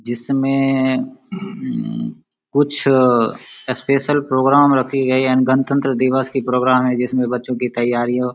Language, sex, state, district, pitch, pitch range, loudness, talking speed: Hindi, male, Bihar, Samastipur, 130 Hz, 125-140 Hz, -17 LUFS, 130 wpm